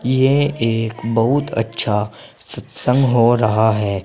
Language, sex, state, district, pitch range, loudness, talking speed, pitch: Hindi, male, Uttar Pradesh, Saharanpur, 110-125 Hz, -17 LUFS, 120 wpm, 115 Hz